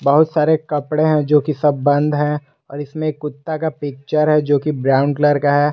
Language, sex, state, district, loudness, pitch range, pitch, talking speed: Hindi, male, Jharkhand, Garhwa, -17 LUFS, 145-155 Hz, 150 Hz, 210 wpm